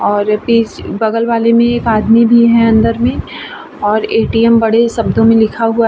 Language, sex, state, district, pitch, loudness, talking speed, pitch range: Hindi, female, Bihar, Vaishali, 230 Hz, -11 LUFS, 195 wpm, 220-230 Hz